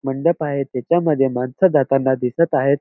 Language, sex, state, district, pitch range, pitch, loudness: Marathi, male, Maharashtra, Dhule, 130-155 Hz, 135 Hz, -18 LUFS